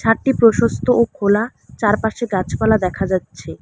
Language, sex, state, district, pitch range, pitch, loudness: Bengali, female, West Bengal, Alipurduar, 200-235 Hz, 220 Hz, -17 LUFS